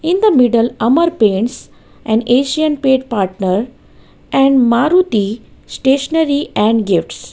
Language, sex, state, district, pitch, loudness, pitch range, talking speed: English, female, Gujarat, Valsad, 250 Hz, -14 LUFS, 220-290 Hz, 115 wpm